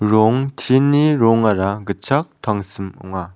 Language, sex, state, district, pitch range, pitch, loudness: Garo, male, Meghalaya, South Garo Hills, 100-135 Hz, 110 Hz, -17 LUFS